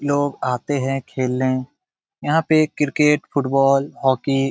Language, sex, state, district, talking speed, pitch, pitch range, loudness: Hindi, male, Bihar, Jamui, 135 wpm, 135 Hz, 130-150 Hz, -20 LUFS